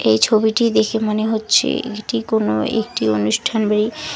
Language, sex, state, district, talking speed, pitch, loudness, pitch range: Bengali, female, West Bengal, Alipurduar, 145 wpm, 220 Hz, -18 LUFS, 210-225 Hz